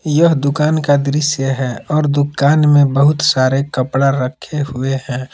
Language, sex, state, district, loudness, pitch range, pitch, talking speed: Hindi, male, Jharkhand, Palamu, -15 LUFS, 135-150 Hz, 140 Hz, 155 wpm